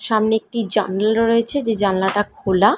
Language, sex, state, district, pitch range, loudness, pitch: Bengali, female, West Bengal, Dakshin Dinajpur, 200-225 Hz, -19 LUFS, 215 Hz